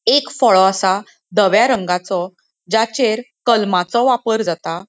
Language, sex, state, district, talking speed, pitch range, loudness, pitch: Konkani, female, Goa, North and South Goa, 110 wpm, 185-235 Hz, -16 LUFS, 205 Hz